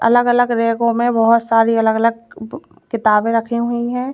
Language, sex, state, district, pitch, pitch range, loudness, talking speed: Hindi, female, Uttar Pradesh, Lalitpur, 230 Hz, 230-240 Hz, -15 LUFS, 175 wpm